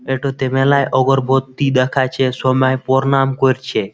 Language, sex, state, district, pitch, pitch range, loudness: Bengali, male, West Bengal, Malda, 130 Hz, 130-135 Hz, -16 LUFS